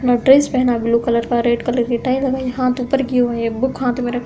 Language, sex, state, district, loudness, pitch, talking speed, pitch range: Hindi, female, Uttar Pradesh, Hamirpur, -17 LUFS, 250 Hz, 295 wpm, 240-255 Hz